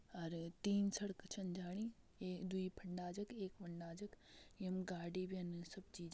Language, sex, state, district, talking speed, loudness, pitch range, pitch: Garhwali, female, Uttarakhand, Tehri Garhwal, 175 wpm, -47 LUFS, 175-200 Hz, 185 Hz